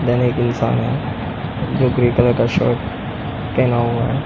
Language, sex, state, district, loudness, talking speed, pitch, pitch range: Hindi, male, Maharashtra, Mumbai Suburban, -18 LUFS, 185 wpm, 120 Hz, 120-125 Hz